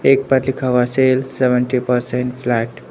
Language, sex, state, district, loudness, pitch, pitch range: Hindi, male, Uttar Pradesh, Lucknow, -17 LUFS, 125 Hz, 125-130 Hz